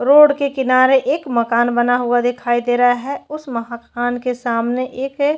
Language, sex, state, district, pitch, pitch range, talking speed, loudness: Hindi, female, Uttarakhand, Tehri Garhwal, 245 Hz, 240-270 Hz, 200 wpm, -17 LUFS